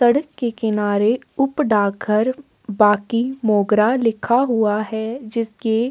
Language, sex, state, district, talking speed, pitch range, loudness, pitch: Hindi, female, Chhattisgarh, Korba, 120 wpm, 215-245 Hz, -19 LUFS, 225 Hz